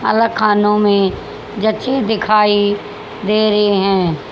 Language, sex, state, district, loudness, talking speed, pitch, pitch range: Hindi, female, Haryana, Charkhi Dadri, -15 LUFS, 110 wpm, 210 Hz, 205-215 Hz